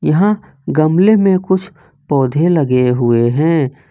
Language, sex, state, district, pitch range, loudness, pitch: Hindi, male, Jharkhand, Ranchi, 135-190 Hz, -14 LUFS, 155 Hz